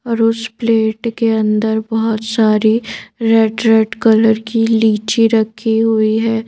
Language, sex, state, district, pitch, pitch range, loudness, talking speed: Hindi, female, Madhya Pradesh, Bhopal, 225 Hz, 220-225 Hz, -14 LUFS, 130 wpm